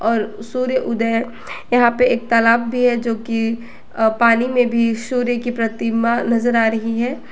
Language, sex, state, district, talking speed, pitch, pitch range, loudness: Hindi, female, Jharkhand, Garhwa, 170 wpm, 235 Hz, 230-245 Hz, -18 LUFS